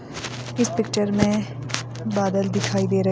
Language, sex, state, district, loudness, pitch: Hindi, female, Himachal Pradesh, Shimla, -23 LUFS, 125 Hz